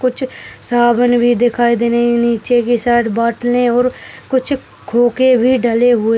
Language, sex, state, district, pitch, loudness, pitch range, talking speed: Hindi, male, Bihar, Darbhanga, 240 Hz, -14 LUFS, 235-245 Hz, 165 wpm